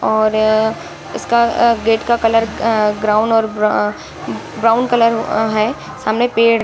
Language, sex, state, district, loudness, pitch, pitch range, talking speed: Hindi, female, Bihar, Saran, -15 LUFS, 225 Hz, 215-230 Hz, 155 wpm